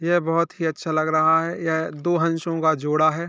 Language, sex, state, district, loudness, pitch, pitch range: Hindi, male, Uttar Pradesh, Jalaun, -22 LUFS, 165 Hz, 160-170 Hz